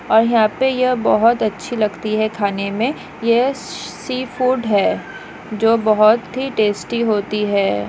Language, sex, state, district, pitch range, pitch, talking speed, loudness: Hindi, female, Goa, North and South Goa, 210-245 Hz, 220 Hz, 145 wpm, -17 LUFS